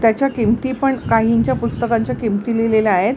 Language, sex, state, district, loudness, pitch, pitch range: Marathi, female, Maharashtra, Mumbai Suburban, -17 LUFS, 230 Hz, 225-255 Hz